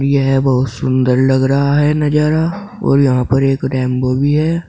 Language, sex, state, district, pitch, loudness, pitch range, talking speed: Hindi, male, Uttar Pradesh, Saharanpur, 135 Hz, -14 LUFS, 130-150 Hz, 180 wpm